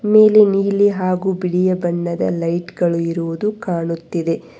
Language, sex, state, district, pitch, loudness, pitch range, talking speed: Kannada, female, Karnataka, Bangalore, 180 Hz, -17 LUFS, 170-200 Hz, 105 wpm